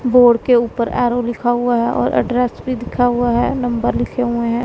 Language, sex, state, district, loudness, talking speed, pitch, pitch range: Hindi, female, Punjab, Pathankot, -16 LUFS, 220 wpm, 240 Hz, 235-245 Hz